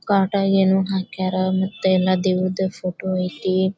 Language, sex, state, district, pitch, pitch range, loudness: Kannada, female, Karnataka, Bijapur, 190 Hz, 185-190 Hz, -20 LUFS